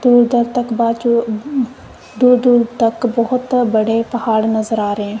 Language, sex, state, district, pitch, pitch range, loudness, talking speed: Hindi, female, Punjab, Kapurthala, 235 Hz, 225-245 Hz, -15 LUFS, 160 wpm